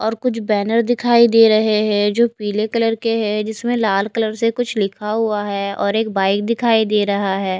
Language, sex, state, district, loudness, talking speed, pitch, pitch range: Hindi, female, Bihar, West Champaran, -17 LUFS, 215 wpm, 220 Hz, 205-230 Hz